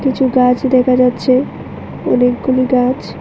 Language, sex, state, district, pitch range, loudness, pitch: Bengali, female, Tripura, West Tripura, 250-260 Hz, -13 LUFS, 255 Hz